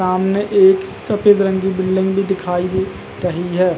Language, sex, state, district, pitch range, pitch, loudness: Hindi, male, Uttar Pradesh, Jalaun, 185-195 Hz, 190 Hz, -16 LUFS